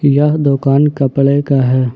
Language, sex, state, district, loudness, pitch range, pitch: Hindi, male, Jharkhand, Ranchi, -12 LUFS, 135-145 Hz, 140 Hz